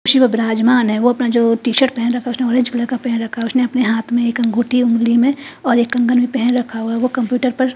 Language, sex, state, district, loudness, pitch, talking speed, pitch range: Hindi, female, Haryana, Charkhi Dadri, -16 LUFS, 245 Hz, 265 wpm, 235-250 Hz